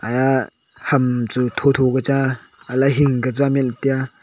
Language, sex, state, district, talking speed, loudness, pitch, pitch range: Wancho, male, Arunachal Pradesh, Longding, 185 wpm, -19 LUFS, 130 Hz, 125-135 Hz